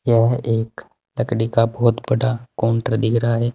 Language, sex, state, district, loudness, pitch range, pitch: Hindi, male, Uttar Pradesh, Saharanpur, -19 LUFS, 115-120 Hz, 115 Hz